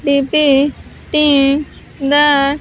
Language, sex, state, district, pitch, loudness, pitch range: English, female, Andhra Pradesh, Sri Satya Sai, 285 Hz, -13 LUFS, 275-295 Hz